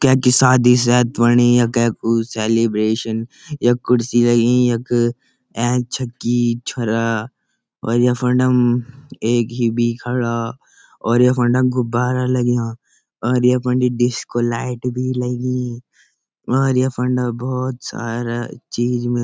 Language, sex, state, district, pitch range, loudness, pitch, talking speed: Garhwali, male, Uttarakhand, Uttarkashi, 120-125 Hz, -18 LUFS, 120 Hz, 125 wpm